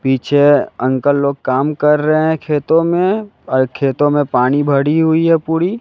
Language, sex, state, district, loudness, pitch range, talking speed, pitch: Hindi, male, Bihar, West Champaran, -14 LUFS, 140-160 Hz, 175 wpm, 145 Hz